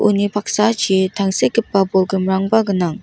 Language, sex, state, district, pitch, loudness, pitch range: Garo, female, Meghalaya, West Garo Hills, 195 Hz, -17 LUFS, 190-210 Hz